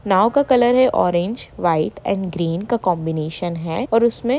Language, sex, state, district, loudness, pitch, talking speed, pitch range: Hindi, female, Jharkhand, Sahebganj, -19 LUFS, 190 Hz, 165 wpm, 170-235 Hz